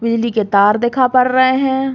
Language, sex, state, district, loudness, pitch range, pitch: Bundeli, female, Uttar Pradesh, Hamirpur, -14 LUFS, 230-260 Hz, 250 Hz